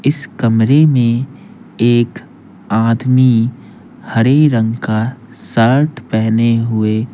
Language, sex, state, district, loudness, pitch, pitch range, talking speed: Hindi, male, Bihar, Patna, -14 LUFS, 120 Hz, 115-130 Hz, 100 wpm